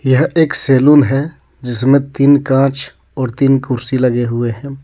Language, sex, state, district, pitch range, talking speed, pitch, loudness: Hindi, male, Jharkhand, Deoghar, 130-140 Hz, 160 wpm, 135 Hz, -13 LUFS